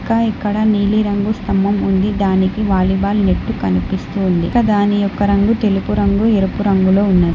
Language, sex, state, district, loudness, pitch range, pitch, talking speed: Telugu, female, Telangana, Hyderabad, -15 LUFS, 190-210 Hz, 200 Hz, 145 wpm